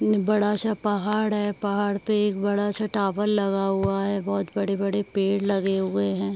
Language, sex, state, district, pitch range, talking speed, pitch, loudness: Hindi, female, Bihar, Saharsa, 195-210 Hz, 180 wpm, 200 Hz, -24 LUFS